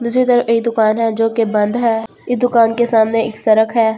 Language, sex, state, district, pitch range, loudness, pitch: Hindi, female, Delhi, New Delhi, 220-235 Hz, -15 LUFS, 230 Hz